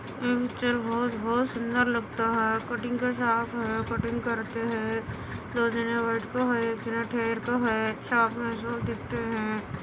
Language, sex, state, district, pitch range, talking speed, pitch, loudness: Hindi, female, Andhra Pradesh, Anantapur, 225-240 Hz, 115 wpm, 230 Hz, -28 LUFS